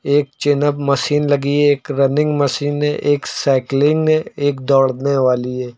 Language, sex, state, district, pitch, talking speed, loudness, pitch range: Hindi, male, Uttar Pradesh, Lucknow, 145 Hz, 175 wpm, -16 LUFS, 135-145 Hz